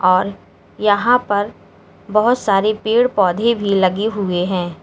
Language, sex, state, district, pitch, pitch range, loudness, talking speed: Hindi, female, Uttar Pradesh, Lalitpur, 205 Hz, 190-220 Hz, -17 LUFS, 135 wpm